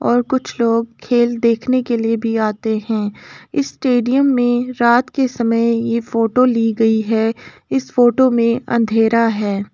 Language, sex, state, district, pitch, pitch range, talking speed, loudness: Hindi, female, Uttar Pradesh, Jalaun, 235 Hz, 225-250 Hz, 160 wpm, -16 LUFS